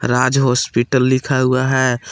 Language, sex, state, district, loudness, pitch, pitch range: Hindi, male, Jharkhand, Palamu, -16 LUFS, 130 Hz, 125-130 Hz